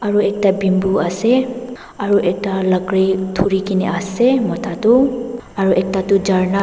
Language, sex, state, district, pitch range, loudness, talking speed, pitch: Nagamese, female, Nagaland, Dimapur, 190-225 Hz, -16 LUFS, 145 wpm, 195 Hz